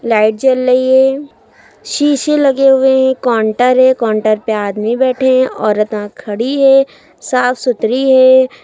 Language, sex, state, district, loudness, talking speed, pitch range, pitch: Hindi, female, Uttar Pradesh, Lucknow, -12 LUFS, 145 wpm, 220-265 Hz, 255 Hz